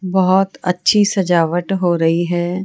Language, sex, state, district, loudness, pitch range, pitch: Hindi, female, Rajasthan, Jaipur, -16 LUFS, 175-190 Hz, 180 Hz